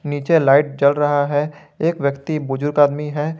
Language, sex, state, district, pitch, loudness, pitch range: Hindi, male, Jharkhand, Garhwa, 145 Hz, -18 LUFS, 145-150 Hz